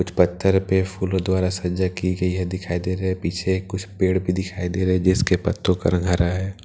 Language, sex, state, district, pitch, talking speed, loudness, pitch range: Hindi, male, Bihar, Katihar, 95 Hz, 225 wpm, -22 LUFS, 90-95 Hz